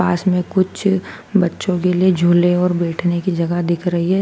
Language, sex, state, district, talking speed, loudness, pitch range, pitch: Hindi, female, Madhya Pradesh, Dhar, 200 wpm, -17 LUFS, 175-185 Hz, 180 Hz